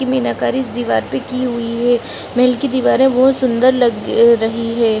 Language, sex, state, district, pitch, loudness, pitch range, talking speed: Hindi, female, Rajasthan, Churu, 245 Hz, -15 LUFS, 230-255 Hz, 180 wpm